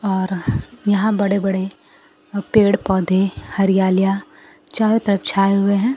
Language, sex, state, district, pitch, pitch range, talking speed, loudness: Hindi, female, Bihar, Kaimur, 200 Hz, 190-215 Hz, 120 wpm, -18 LUFS